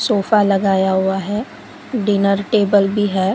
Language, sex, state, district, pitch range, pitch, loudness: Hindi, female, Gujarat, Valsad, 195-205 Hz, 200 Hz, -16 LUFS